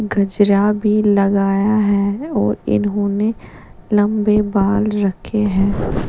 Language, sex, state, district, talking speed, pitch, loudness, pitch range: Hindi, female, Bihar, Patna, 120 wpm, 205 Hz, -16 LUFS, 200-210 Hz